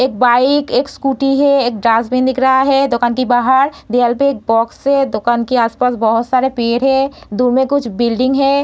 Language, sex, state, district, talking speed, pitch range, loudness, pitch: Hindi, female, Bihar, Darbhanga, 230 wpm, 240-275 Hz, -14 LUFS, 255 Hz